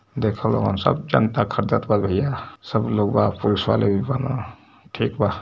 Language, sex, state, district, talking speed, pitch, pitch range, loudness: Hindi, male, Uttar Pradesh, Varanasi, 175 wpm, 110 Hz, 100-120 Hz, -22 LUFS